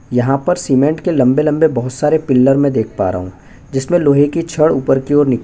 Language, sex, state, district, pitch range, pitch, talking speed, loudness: Hindi, male, Chhattisgarh, Bastar, 130-155 Hz, 140 Hz, 265 wpm, -14 LUFS